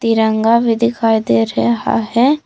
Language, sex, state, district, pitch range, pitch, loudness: Hindi, female, Jharkhand, Palamu, 215-235 Hz, 225 Hz, -14 LUFS